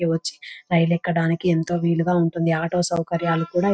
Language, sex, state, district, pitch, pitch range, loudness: Telugu, female, Telangana, Nalgonda, 170 Hz, 165-175 Hz, -22 LUFS